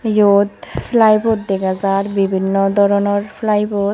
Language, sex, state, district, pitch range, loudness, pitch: Chakma, female, Tripura, Unakoti, 195-210 Hz, -15 LUFS, 200 Hz